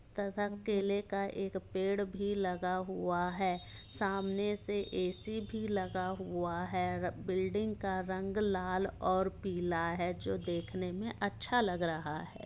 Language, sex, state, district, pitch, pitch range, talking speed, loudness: Hindi, female, Bihar, Muzaffarpur, 190 Hz, 180-200 Hz, 140 wpm, -36 LUFS